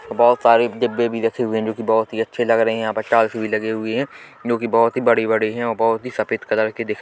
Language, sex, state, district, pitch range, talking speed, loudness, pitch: Hindi, male, Chhattisgarh, Korba, 110-115 Hz, 290 wpm, -19 LUFS, 115 Hz